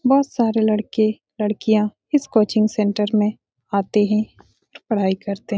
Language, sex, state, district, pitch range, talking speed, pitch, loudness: Hindi, female, Bihar, Saran, 210-220 Hz, 140 wpm, 215 Hz, -20 LUFS